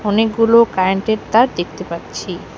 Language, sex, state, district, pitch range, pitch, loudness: Bengali, female, West Bengal, Alipurduar, 185-225 Hz, 215 Hz, -16 LUFS